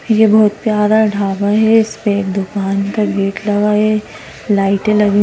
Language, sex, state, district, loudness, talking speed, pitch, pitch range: Hindi, female, Madhya Pradesh, Bhopal, -14 LUFS, 160 wpm, 210 Hz, 200-215 Hz